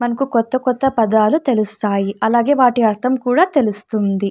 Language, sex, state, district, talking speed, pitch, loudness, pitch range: Telugu, female, Andhra Pradesh, Anantapur, 125 wpm, 235 Hz, -16 LUFS, 215-255 Hz